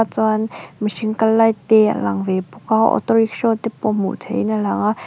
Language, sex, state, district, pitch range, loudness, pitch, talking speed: Mizo, female, Mizoram, Aizawl, 185-225 Hz, -18 LUFS, 215 Hz, 225 wpm